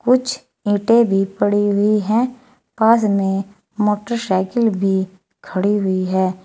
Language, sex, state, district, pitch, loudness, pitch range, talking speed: Hindi, female, Uttar Pradesh, Saharanpur, 205 Hz, -18 LUFS, 195-230 Hz, 120 wpm